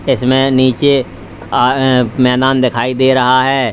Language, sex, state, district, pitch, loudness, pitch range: Hindi, male, Uttar Pradesh, Lalitpur, 130 Hz, -12 LUFS, 125-130 Hz